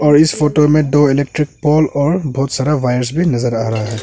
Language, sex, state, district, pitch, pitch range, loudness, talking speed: Hindi, male, Arunachal Pradesh, Longding, 145 Hz, 130-150 Hz, -14 LUFS, 240 wpm